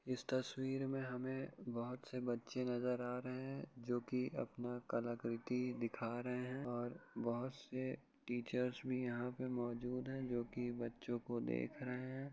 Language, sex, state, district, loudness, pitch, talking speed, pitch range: Hindi, male, Bihar, Jahanabad, -44 LUFS, 125 Hz, 165 wpm, 120-130 Hz